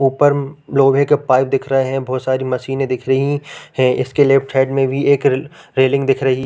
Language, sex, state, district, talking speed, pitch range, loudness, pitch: Hindi, male, Chhattisgarh, Raigarh, 215 wpm, 130-140 Hz, -16 LUFS, 135 Hz